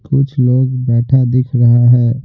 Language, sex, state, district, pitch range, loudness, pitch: Hindi, male, Bihar, Patna, 120-130 Hz, -12 LUFS, 125 Hz